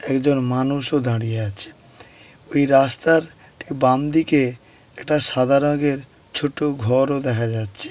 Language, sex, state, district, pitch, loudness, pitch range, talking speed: Bengali, male, West Bengal, Paschim Medinipur, 135 Hz, -19 LUFS, 125-145 Hz, 130 wpm